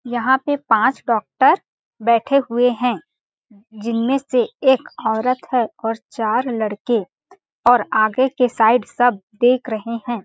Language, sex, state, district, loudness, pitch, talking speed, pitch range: Hindi, female, Chhattisgarh, Balrampur, -18 LUFS, 240 Hz, 135 wpm, 225-260 Hz